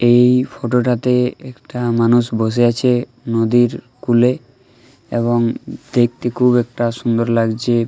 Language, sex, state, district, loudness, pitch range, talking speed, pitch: Bengali, male, Jharkhand, Jamtara, -16 LUFS, 115-125 Hz, 115 wpm, 120 Hz